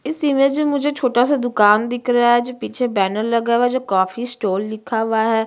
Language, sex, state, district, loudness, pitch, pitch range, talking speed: Hindi, female, Chhattisgarh, Bastar, -18 LUFS, 240 Hz, 220-255 Hz, 240 wpm